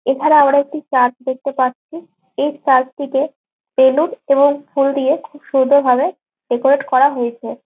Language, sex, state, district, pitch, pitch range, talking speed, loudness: Bengali, female, West Bengal, Jalpaiguri, 275 Hz, 260-290 Hz, 150 wpm, -16 LUFS